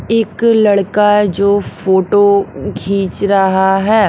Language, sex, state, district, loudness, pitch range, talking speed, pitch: Hindi, female, Haryana, Rohtak, -12 LUFS, 195-210 Hz, 100 wpm, 200 Hz